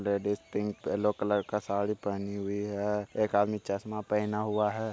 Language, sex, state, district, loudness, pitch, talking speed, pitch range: Hindi, male, Bihar, Bhagalpur, -31 LUFS, 105 Hz, 180 wpm, 100-105 Hz